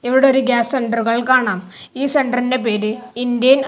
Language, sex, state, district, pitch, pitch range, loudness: Malayalam, male, Kerala, Kasaragod, 245 Hz, 230-265 Hz, -17 LUFS